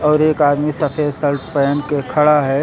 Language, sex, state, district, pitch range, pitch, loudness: Hindi, male, Uttar Pradesh, Lucknow, 145-150 Hz, 150 Hz, -16 LUFS